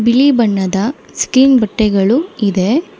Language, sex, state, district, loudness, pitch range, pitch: Kannada, female, Karnataka, Bangalore, -13 LUFS, 205-265 Hz, 230 Hz